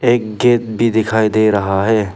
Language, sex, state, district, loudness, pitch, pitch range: Hindi, male, Arunachal Pradesh, Papum Pare, -15 LUFS, 110 Hz, 105-115 Hz